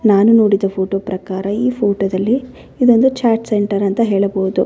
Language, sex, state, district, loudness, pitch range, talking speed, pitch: Kannada, female, Karnataka, Bellary, -15 LUFS, 195-230 Hz, 140 wpm, 205 Hz